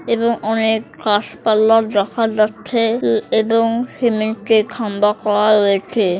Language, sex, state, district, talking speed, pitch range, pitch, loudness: Bengali, female, West Bengal, Jhargram, 125 wpm, 210-230 Hz, 220 Hz, -16 LUFS